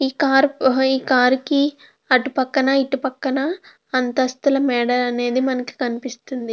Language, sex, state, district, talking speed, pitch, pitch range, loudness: Telugu, female, Andhra Pradesh, Krishna, 100 wpm, 265 Hz, 255-275 Hz, -19 LUFS